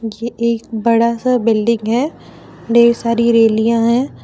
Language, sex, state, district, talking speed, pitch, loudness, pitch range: Hindi, female, Jharkhand, Deoghar, 140 wpm, 230 Hz, -15 LUFS, 230-235 Hz